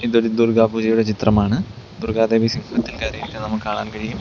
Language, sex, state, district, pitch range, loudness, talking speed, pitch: Malayalam, male, Kerala, Kollam, 110-115 Hz, -19 LUFS, 170 wpm, 110 Hz